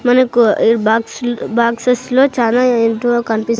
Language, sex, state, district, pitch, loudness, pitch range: Telugu, male, Andhra Pradesh, Sri Satya Sai, 235 Hz, -14 LUFS, 230-250 Hz